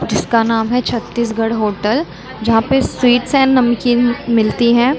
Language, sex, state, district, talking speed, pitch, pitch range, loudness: Hindi, female, Chhattisgarh, Bilaspur, 155 wpm, 235 Hz, 225-250 Hz, -15 LUFS